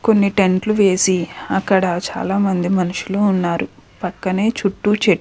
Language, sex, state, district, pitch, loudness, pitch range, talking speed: Telugu, female, Andhra Pradesh, Krishna, 190 Hz, -18 LUFS, 185-200 Hz, 150 wpm